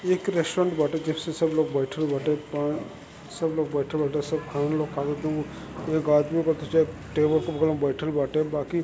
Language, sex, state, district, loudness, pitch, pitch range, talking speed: Bhojpuri, male, Uttar Pradesh, Gorakhpur, -26 LUFS, 155 Hz, 145-160 Hz, 185 wpm